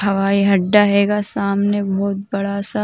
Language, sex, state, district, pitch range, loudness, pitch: Hindi, female, Uttar Pradesh, Ghazipur, 200-205 Hz, -17 LUFS, 200 Hz